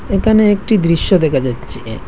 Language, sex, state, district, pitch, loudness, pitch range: Bengali, male, Assam, Hailakandi, 170 Hz, -13 LUFS, 125-205 Hz